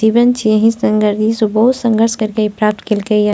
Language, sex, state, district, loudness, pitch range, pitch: Maithili, female, Bihar, Purnia, -14 LUFS, 215-225 Hz, 215 Hz